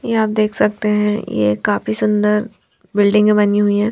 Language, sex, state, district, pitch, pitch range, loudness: Hindi, female, Bihar, Patna, 210 Hz, 205-210 Hz, -16 LUFS